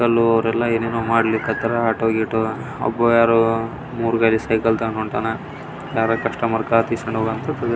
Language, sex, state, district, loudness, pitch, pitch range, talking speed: Kannada, male, Karnataka, Belgaum, -19 LUFS, 115 Hz, 110-115 Hz, 140 wpm